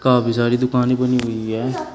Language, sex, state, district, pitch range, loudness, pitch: Hindi, male, Uttar Pradesh, Shamli, 120-125 Hz, -19 LUFS, 125 Hz